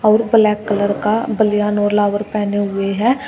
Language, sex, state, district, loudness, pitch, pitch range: Hindi, female, Uttar Pradesh, Shamli, -16 LUFS, 210 Hz, 205-215 Hz